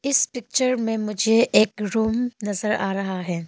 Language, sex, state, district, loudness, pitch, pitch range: Hindi, female, Arunachal Pradesh, Longding, -22 LUFS, 220 Hz, 205-240 Hz